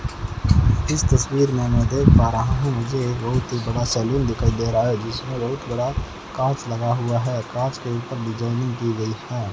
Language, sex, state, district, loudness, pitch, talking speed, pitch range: Hindi, male, Rajasthan, Bikaner, -22 LUFS, 120 Hz, 200 wpm, 115-125 Hz